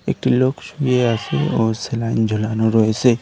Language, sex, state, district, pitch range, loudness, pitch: Bengali, male, West Bengal, Cooch Behar, 110-125 Hz, -18 LUFS, 115 Hz